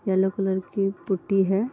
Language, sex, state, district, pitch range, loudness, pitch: Hindi, female, Uttar Pradesh, Deoria, 190-200 Hz, -25 LUFS, 195 Hz